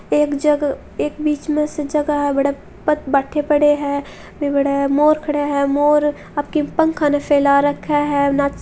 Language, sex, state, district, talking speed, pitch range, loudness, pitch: Hindi, female, Rajasthan, Churu, 175 wpm, 280-300 Hz, -18 LUFS, 290 Hz